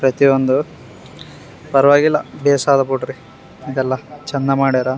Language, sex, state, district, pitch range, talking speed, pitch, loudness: Kannada, male, Karnataka, Raichur, 130-145 Hz, 85 wpm, 135 Hz, -16 LUFS